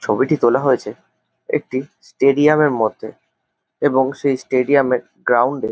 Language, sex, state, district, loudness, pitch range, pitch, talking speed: Bengali, male, West Bengal, Jalpaiguri, -17 LUFS, 125-145 Hz, 135 Hz, 135 wpm